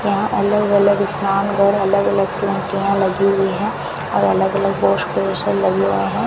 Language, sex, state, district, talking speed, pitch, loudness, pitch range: Hindi, female, Rajasthan, Bikaner, 155 wpm, 200 Hz, -17 LUFS, 195-200 Hz